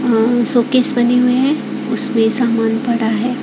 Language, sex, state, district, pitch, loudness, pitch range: Hindi, female, Odisha, Khordha, 240 Hz, -15 LUFS, 230-250 Hz